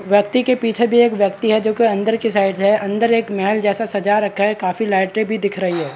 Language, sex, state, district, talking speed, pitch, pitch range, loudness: Hindi, male, Chhattisgarh, Bastar, 250 wpm, 210 Hz, 200-225 Hz, -17 LUFS